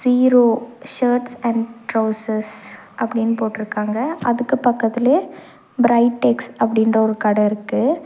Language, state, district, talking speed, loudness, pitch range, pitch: Tamil, Tamil Nadu, Nilgiris, 95 wpm, -18 LUFS, 220-250 Hz, 235 Hz